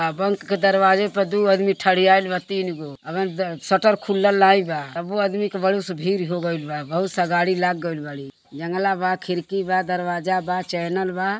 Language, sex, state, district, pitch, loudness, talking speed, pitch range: Bhojpuri, female, Uttar Pradesh, Deoria, 185 Hz, -21 LUFS, 175 wpm, 175-195 Hz